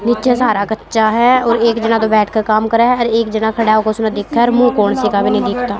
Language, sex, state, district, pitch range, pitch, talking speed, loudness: Hindi, female, Haryana, Jhajjar, 215-235 Hz, 225 Hz, 300 wpm, -13 LUFS